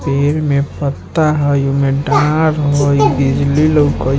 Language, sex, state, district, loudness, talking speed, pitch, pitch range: Hindi, male, Bihar, Muzaffarpur, -14 LUFS, 155 wpm, 145 Hz, 140-150 Hz